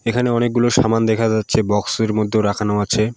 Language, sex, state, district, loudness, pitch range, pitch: Bengali, male, West Bengal, Alipurduar, -18 LUFS, 105-120 Hz, 110 Hz